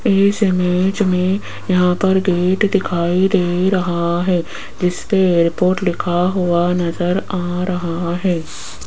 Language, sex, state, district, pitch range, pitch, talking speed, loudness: Hindi, female, Rajasthan, Jaipur, 175-190 Hz, 180 Hz, 120 wpm, -17 LUFS